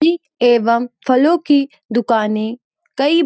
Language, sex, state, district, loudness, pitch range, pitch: Hindi, female, Uttarakhand, Uttarkashi, -16 LUFS, 235-315 Hz, 260 Hz